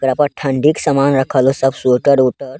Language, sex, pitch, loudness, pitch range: Angika, male, 135 Hz, -14 LUFS, 130-140 Hz